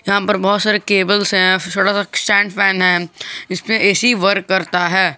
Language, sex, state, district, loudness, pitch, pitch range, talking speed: Hindi, male, Jharkhand, Garhwa, -14 LUFS, 195 Hz, 185-205 Hz, 210 wpm